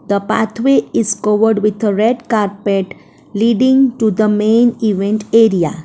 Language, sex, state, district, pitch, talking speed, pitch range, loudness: English, female, Gujarat, Valsad, 215 Hz, 145 wpm, 205-230 Hz, -14 LUFS